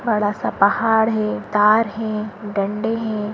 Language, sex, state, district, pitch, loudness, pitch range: Bhojpuri, female, Uttar Pradesh, Gorakhpur, 215 Hz, -19 LUFS, 210-220 Hz